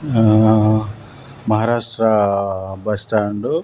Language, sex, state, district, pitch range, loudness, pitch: Telugu, male, Andhra Pradesh, Sri Satya Sai, 105-115 Hz, -17 LUFS, 110 Hz